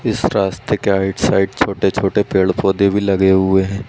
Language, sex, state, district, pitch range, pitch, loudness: Hindi, male, Uttar Pradesh, Ghazipur, 95-100 Hz, 95 Hz, -16 LUFS